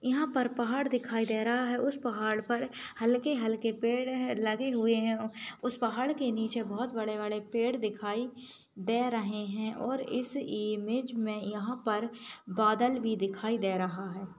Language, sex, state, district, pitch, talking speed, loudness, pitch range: Hindi, female, Bihar, Begusarai, 230 Hz, 165 wpm, -32 LUFS, 215-250 Hz